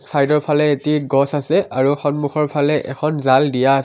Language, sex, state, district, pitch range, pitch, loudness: Assamese, male, Assam, Kamrup Metropolitan, 135-150 Hz, 145 Hz, -17 LUFS